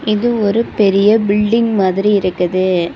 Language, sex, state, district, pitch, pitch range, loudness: Tamil, female, Tamil Nadu, Kanyakumari, 205 Hz, 185-220 Hz, -14 LUFS